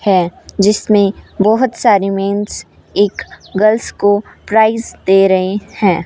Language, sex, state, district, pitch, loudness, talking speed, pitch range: Hindi, female, Rajasthan, Bikaner, 205 Hz, -14 LUFS, 120 wpm, 195-215 Hz